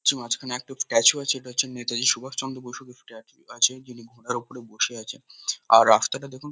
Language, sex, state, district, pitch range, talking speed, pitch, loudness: Bengali, male, West Bengal, Kolkata, 120-135 Hz, 220 wpm, 125 Hz, -23 LUFS